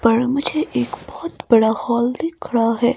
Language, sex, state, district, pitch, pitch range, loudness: Hindi, female, Himachal Pradesh, Shimla, 245 Hz, 230-275 Hz, -19 LUFS